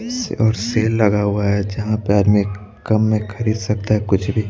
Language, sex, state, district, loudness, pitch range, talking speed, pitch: Hindi, male, Madhya Pradesh, Bhopal, -18 LUFS, 100-110 Hz, 215 wpm, 105 Hz